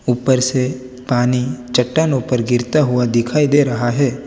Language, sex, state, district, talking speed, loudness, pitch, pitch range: Hindi, male, Gujarat, Valsad, 155 wpm, -16 LUFS, 125 Hz, 125-140 Hz